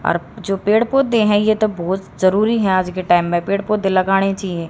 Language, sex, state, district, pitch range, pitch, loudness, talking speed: Hindi, female, Haryana, Rohtak, 185-215 Hz, 195 Hz, -17 LUFS, 230 wpm